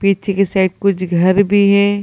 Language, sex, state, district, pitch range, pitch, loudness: Hindi, female, Bihar, Gaya, 190-200 Hz, 195 Hz, -14 LUFS